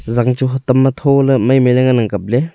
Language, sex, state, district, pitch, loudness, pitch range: Wancho, male, Arunachal Pradesh, Longding, 130 Hz, -13 LUFS, 120-135 Hz